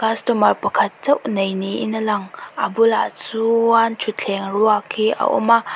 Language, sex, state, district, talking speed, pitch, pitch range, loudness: Mizo, female, Mizoram, Aizawl, 175 wpm, 220 Hz, 205-230 Hz, -18 LUFS